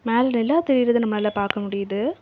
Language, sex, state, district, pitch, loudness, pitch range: Tamil, female, Tamil Nadu, Kanyakumari, 230 Hz, -21 LUFS, 205-245 Hz